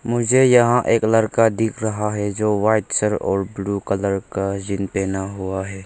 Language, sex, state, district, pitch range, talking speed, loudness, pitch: Hindi, male, Arunachal Pradesh, Longding, 95-110 Hz, 185 wpm, -19 LUFS, 105 Hz